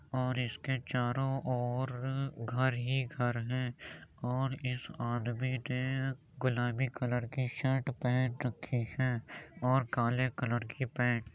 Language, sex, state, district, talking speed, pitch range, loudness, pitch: Hindi, male, Uttar Pradesh, Jyotiba Phule Nagar, 130 wpm, 120-130 Hz, -34 LUFS, 125 Hz